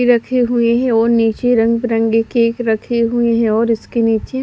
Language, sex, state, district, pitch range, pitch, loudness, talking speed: Hindi, female, Punjab, Fazilka, 225-240 Hz, 230 Hz, -15 LUFS, 175 wpm